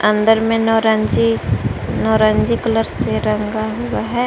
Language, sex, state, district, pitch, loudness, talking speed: Hindi, female, Jharkhand, Garhwa, 210 Hz, -16 LUFS, 125 wpm